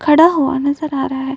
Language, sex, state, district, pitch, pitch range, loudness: Hindi, female, Uttar Pradesh, Muzaffarnagar, 280 Hz, 270-310 Hz, -15 LUFS